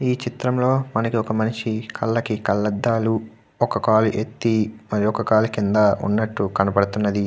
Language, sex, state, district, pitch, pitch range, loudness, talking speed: Telugu, male, Andhra Pradesh, Guntur, 110 Hz, 105-115 Hz, -21 LUFS, 140 wpm